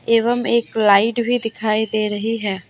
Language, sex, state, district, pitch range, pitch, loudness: Hindi, female, Jharkhand, Deoghar, 210-235 Hz, 225 Hz, -18 LUFS